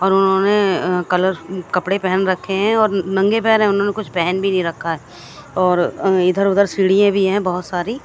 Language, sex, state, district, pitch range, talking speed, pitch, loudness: Hindi, female, Haryana, Charkhi Dadri, 180-200 Hz, 215 wpm, 190 Hz, -17 LUFS